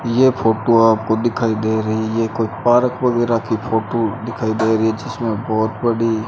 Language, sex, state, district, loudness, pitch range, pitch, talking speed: Hindi, male, Rajasthan, Bikaner, -18 LUFS, 110-120 Hz, 115 Hz, 190 wpm